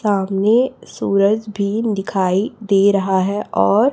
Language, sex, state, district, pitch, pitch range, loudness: Hindi, female, Chhattisgarh, Raipur, 200 Hz, 195-215 Hz, -17 LUFS